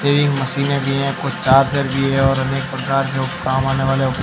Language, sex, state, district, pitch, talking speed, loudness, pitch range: Hindi, male, Rajasthan, Barmer, 135 Hz, 240 wpm, -17 LUFS, 135-140 Hz